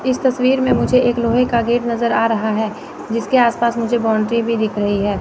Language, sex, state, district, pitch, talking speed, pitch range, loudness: Hindi, female, Chandigarh, Chandigarh, 235 Hz, 240 wpm, 220-245 Hz, -17 LUFS